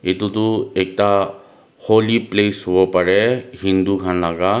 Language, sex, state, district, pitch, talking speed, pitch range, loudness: Nagamese, male, Nagaland, Dimapur, 100 Hz, 130 wpm, 95-105 Hz, -17 LUFS